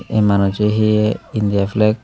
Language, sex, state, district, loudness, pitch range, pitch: Chakma, male, Tripura, Dhalai, -16 LUFS, 100-110 Hz, 105 Hz